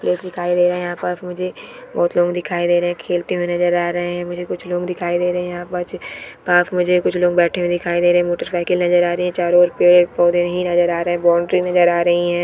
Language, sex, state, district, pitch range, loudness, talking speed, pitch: Hindi, female, Chhattisgarh, Jashpur, 175-180 Hz, -17 LUFS, 285 wpm, 175 Hz